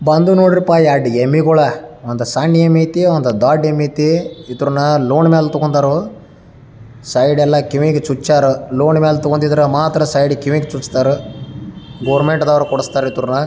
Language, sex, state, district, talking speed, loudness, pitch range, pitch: Kannada, male, Karnataka, Dharwad, 140 wpm, -13 LUFS, 135-155 Hz, 150 Hz